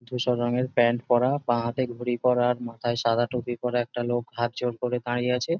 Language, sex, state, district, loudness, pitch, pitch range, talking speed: Bengali, male, West Bengal, Jhargram, -26 LUFS, 120 Hz, 120-125 Hz, 205 wpm